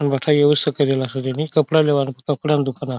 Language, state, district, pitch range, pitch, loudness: Bhili, Maharashtra, Dhule, 135-150 Hz, 145 Hz, -19 LUFS